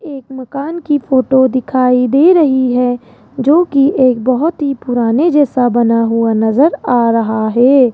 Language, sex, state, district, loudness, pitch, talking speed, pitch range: Hindi, female, Rajasthan, Jaipur, -12 LUFS, 260 Hz, 150 wpm, 240-285 Hz